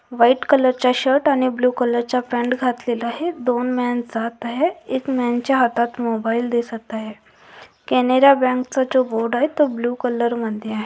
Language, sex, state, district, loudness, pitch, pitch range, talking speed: Marathi, female, Maharashtra, Dhule, -19 LUFS, 245 Hz, 235-255 Hz, 180 wpm